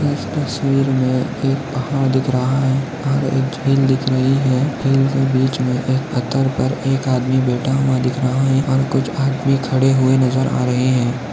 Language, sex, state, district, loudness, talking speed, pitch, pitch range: Hindi, male, Maharashtra, Nagpur, -17 LUFS, 185 wpm, 135 Hz, 130-135 Hz